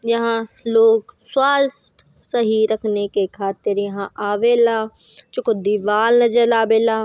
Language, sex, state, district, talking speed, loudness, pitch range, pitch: Bhojpuri, female, Bihar, Gopalganj, 120 wpm, -18 LUFS, 210-235 Hz, 225 Hz